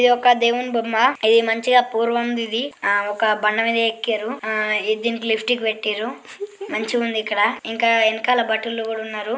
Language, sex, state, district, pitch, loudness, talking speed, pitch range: Telugu, female, Andhra Pradesh, Guntur, 225 Hz, -20 LUFS, 155 wpm, 220-235 Hz